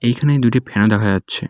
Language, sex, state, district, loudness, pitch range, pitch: Bengali, male, West Bengal, Cooch Behar, -16 LUFS, 105-130 Hz, 120 Hz